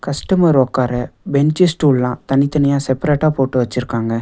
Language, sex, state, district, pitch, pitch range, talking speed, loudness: Tamil, male, Tamil Nadu, Nilgiris, 140 Hz, 125-150 Hz, 115 wpm, -16 LUFS